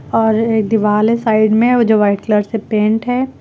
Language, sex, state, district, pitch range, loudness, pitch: Hindi, female, Uttar Pradesh, Lucknow, 215-225 Hz, -14 LUFS, 220 Hz